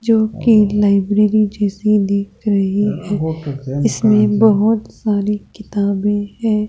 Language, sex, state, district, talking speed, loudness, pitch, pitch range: Hindi, female, Rajasthan, Jaipur, 110 wpm, -16 LUFS, 205 Hz, 200-215 Hz